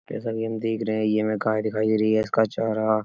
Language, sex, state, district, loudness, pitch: Hindi, male, Uttar Pradesh, Etah, -24 LUFS, 110 Hz